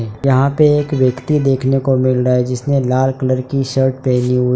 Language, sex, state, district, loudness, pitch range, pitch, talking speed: Hindi, male, Gujarat, Valsad, -15 LUFS, 125-135 Hz, 130 Hz, 195 wpm